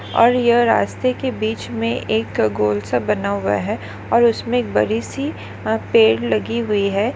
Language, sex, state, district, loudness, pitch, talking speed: Hindi, female, Maharashtra, Nagpur, -18 LUFS, 220 Hz, 185 wpm